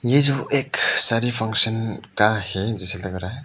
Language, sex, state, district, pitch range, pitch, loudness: Hindi, male, Arunachal Pradesh, Papum Pare, 100-120 Hz, 110 Hz, -20 LUFS